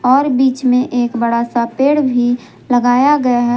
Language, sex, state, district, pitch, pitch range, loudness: Hindi, female, Jharkhand, Garhwa, 250 Hz, 240-265 Hz, -14 LUFS